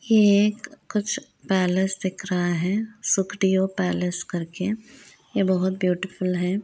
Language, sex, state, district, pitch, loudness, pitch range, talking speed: Hindi, female, Uttar Pradesh, Varanasi, 190 Hz, -24 LUFS, 180-210 Hz, 125 wpm